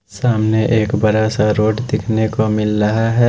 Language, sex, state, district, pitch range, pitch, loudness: Hindi, male, Chhattisgarh, Raipur, 105-115 Hz, 110 Hz, -16 LUFS